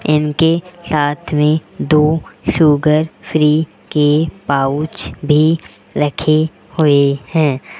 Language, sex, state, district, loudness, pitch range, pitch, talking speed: Hindi, female, Rajasthan, Jaipur, -15 LUFS, 150-160 Hz, 155 Hz, 90 wpm